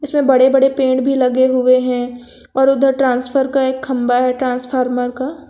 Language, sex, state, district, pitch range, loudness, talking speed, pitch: Hindi, female, Uttar Pradesh, Lucknow, 250-270 Hz, -15 LUFS, 185 wpm, 260 Hz